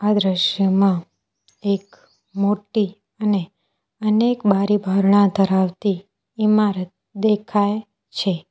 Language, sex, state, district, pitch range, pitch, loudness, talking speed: Gujarati, female, Gujarat, Valsad, 195-210 Hz, 200 Hz, -20 LUFS, 85 wpm